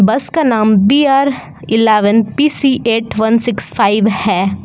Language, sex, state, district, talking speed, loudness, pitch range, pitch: Hindi, female, Jharkhand, Palamu, 140 wpm, -12 LUFS, 210-270 Hz, 225 Hz